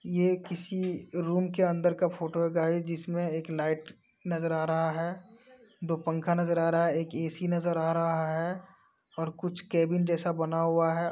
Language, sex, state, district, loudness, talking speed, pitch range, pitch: Hindi, male, Uttar Pradesh, Etah, -30 LUFS, 190 wpm, 165-180 Hz, 170 Hz